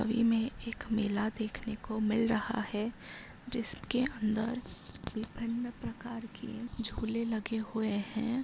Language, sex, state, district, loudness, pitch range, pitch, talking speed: Hindi, female, Bihar, Begusarai, -35 LUFS, 220-235 Hz, 225 Hz, 120 wpm